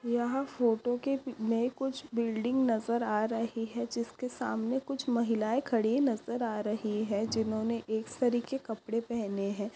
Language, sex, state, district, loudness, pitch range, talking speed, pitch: Hindi, female, Maharashtra, Nagpur, -32 LUFS, 220-250 Hz, 160 wpm, 235 Hz